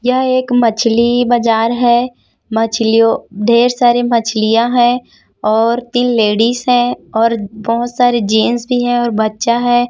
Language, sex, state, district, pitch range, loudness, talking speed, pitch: Hindi, female, Chhattisgarh, Raipur, 225-245 Hz, -13 LUFS, 140 wpm, 235 Hz